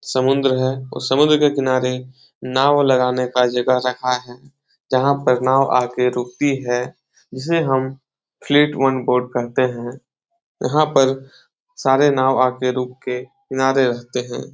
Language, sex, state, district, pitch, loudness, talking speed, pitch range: Hindi, male, Bihar, Jahanabad, 130 Hz, -18 LUFS, 150 wpm, 125-135 Hz